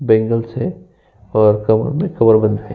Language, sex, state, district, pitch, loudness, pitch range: Hindi, male, Uttar Pradesh, Jyotiba Phule Nagar, 110 Hz, -15 LUFS, 110-115 Hz